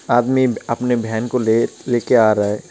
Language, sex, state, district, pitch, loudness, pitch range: Hindi, male, West Bengal, Alipurduar, 120 Hz, -17 LUFS, 110-125 Hz